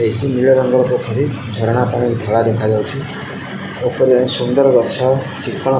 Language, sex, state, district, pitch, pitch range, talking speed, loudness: Odia, male, Odisha, Sambalpur, 125 Hz, 115-135 Hz, 135 wpm, -15 LUFS